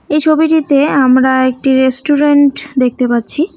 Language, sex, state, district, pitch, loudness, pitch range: Bengali, female, West Bengal, Cooch Behar, 275 Hz, -11 LUFS, 260-300 Hz